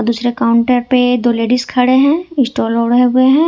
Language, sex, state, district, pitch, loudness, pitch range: Hindi, female, Jharkhand, Ranchi, 250 Hz, -13 LUFS, 235-260 Hz